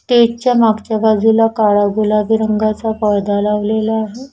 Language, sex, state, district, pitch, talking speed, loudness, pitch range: Marathi, female, Maharashtra, Washim, 220 Hz, 125 wpm, -14 LUFS, 215-225 Hz